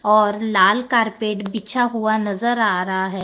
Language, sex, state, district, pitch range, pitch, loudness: Hindi, female, Maharashtra, Gondia, 200-225 Hz, 215 Hz, -18 LUFS